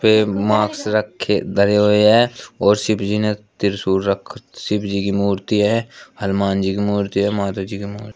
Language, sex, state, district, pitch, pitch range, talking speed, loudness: Hindi, male, Uttar Pradesh, Shamli, 105 Hz, 100-105 Hz, 185 wpm, -18 LUFS